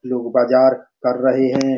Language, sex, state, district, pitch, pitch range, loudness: Hindi, male, Bihar, Supaul, 130 Hz, 125-130 Hz, -17 LUFS